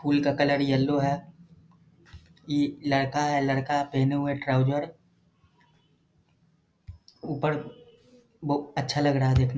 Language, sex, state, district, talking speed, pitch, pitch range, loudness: Hindi, male, Bihar, Jahanabad, 125 wpm, 145 Hz, 135-145 Hz, -26 LUFS